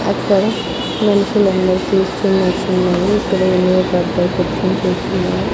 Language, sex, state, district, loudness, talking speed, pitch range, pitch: Telugu, female, Andhra Pradesh, Sri Satya Sai, -15 LUFS, 85 wpm, 185-200 Hz, 185 Hz